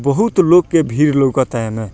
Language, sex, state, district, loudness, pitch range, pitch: Bhojpuri, male, Bihar, Muzaffarpur, -14 LUFS, 125-170 Hz, 140 Hz